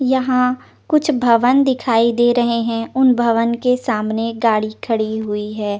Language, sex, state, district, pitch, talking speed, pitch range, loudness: Hindi, female, Chandigarh, Chandigarh, 235 Hz, 165 wpm, 225-250 Hz, -17 LUFS